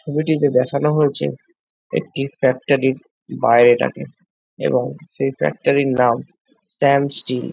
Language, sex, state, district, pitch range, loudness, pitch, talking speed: Bengali, male, West Bengal, Jhargram, 130-150 Hz, -18 LUFS, 140 Hz, 105 wpm